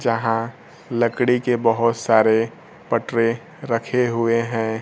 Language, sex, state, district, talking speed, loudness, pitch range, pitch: Hindi, male, Bihar, Kaimur, 110 wpm, -20 LUFS, 115-120 Hz, 115 Hz